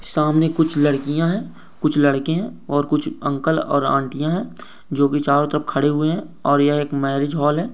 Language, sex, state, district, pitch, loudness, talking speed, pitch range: Hindi, male, Uttar Pradesh, Budaun, 150 Hz, -19 LUFS, 200 wpm, 140-160 Hz